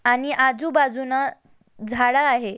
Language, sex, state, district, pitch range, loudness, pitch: Marathi, female, Maharashtra, Aurangabad, 245-285 Hz, -20 LUFS, 260 Hz